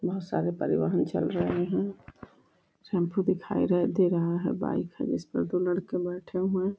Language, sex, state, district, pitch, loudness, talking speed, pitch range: Hindi, female, Uttar Pradesh, Deoria, 180 Hz, -29 LUFS, 175 wpm, 170-185 Hz